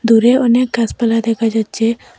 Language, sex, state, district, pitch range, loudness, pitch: Bengali, female, Assam, Hailakandi, 225-240 Hz, -14 LUFS, 230 Hz